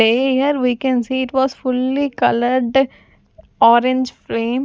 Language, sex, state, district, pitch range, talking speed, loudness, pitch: English, female, Punjab, Fazilka, 245-265 Hz, 130 wpm, -17 LUFS, 255 Hz